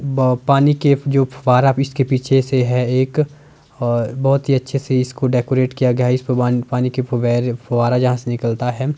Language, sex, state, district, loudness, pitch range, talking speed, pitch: Hindi, male, Himachal Pradesh, Shimla, -17 LUFS, 125-135 Hz, 195 wpm, 130 Hz